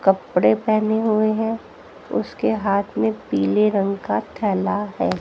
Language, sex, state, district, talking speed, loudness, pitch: Hindi, female, Haryana, Jhajjar, 140 wpm, -21 LUFS, 200 Hz